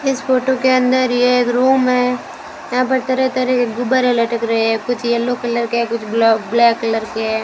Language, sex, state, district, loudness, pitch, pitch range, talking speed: Hindi, female, Rajasthan, Bikaner, -16 LUFS, 245 Hz, 230-255 Hz, 210 wpm